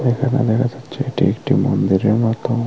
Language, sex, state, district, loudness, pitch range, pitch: Bengali, male, Tripura, Unakoti, -18 LUFS, 110-125 Hz, 120 Hz